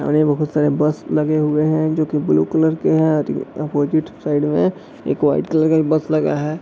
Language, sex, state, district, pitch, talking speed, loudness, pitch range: Hindi, male, Bihar, East Champaran, 150 Hz, 235 wpm, -18 LUFS, 150-155 Hz